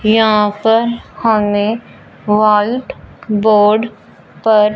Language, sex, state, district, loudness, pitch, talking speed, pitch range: Hindi, male, Punjab, Fazilka, -13 LUFS, 215 Hz, 75 wpm, 210-225 Hz